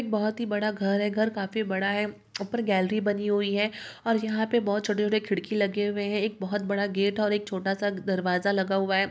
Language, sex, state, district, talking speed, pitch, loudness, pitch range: Hindi, female, Andhra Pradesh, Guntur, 245 wpm, 205 Hz, -27 LUFS, 200-215 Hz